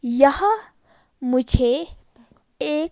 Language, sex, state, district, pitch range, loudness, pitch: Hindi, female, Himachal Pradesh, Shimla, 255-320 Hz, -20 LUFS, 280 Hz